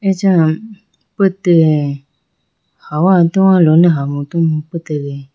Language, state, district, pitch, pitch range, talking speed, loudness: Idu Mishmi, Arunachal Pradesh, Lower Dibang Valley, 165 Hz, 150-190 Hz, 90 wpm, -13 LUFS